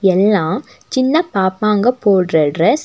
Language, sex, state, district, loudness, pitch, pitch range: Tamil, female, Tamil Nadu, Nilgiris, -15 LUFS, 200 Hz, 185-250 Hz